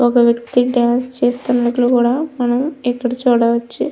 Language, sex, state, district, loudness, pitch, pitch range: Telugu, female, Andhra Pradesh, Anantapur, -16 LUFS, 245 Hz, 240-250 Hz